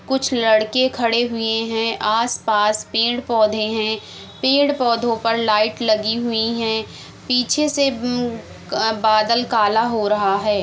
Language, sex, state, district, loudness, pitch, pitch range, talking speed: Hindi, female, Uttar Pradesh, Muzaffarnagar, -19 LUFS, 225 Hz, 215-240 Hz, 120 wpm